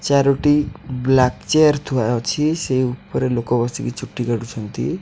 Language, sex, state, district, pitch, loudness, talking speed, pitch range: Odia, male, Odisha, Khordha, 130 Hz, -19 LUFS, 145 wpm, 120-145 Hz